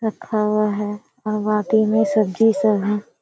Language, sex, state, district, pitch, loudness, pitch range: Hindi, female, Bihar, Kishanganj, 215 Hz, -19 LUFS, 210-215 Hz